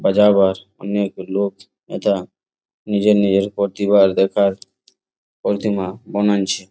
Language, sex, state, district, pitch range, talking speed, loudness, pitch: Bengali, male, West Bengal, Jalpaiguri, 95-100 Hz, 90 wpm, -18 LUFS, 100 Hz